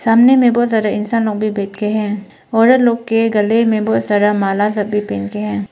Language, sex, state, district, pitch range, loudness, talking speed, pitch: Hindi, female, Arunachal Pradesh, Papum Pare, 205-225 Hz, -15 LUFS, 230 wpm, 210 Hz